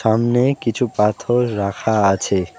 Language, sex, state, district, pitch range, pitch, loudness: Bengali, male, West Bengal, Alipurduar, 100-120 Hz, 110 Hz, -18 LUFS